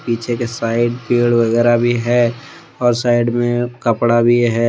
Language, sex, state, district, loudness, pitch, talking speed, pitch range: Hindi, male, Jharkhand, Deoghar, -16 LUFS, 120 Hz, 165 wpm, 115-120 Hz